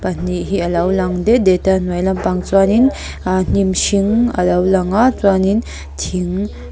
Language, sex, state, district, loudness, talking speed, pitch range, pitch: Mizo, female, Mizoram, Aizawl, -15 LUFS, 190 wpm, 180-200 Hz, 190 Hz